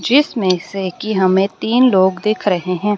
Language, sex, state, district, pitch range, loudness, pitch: Hindi, female, Haryana, Rohtak, 185-220 Hz, -16 LUFS, 195 Hz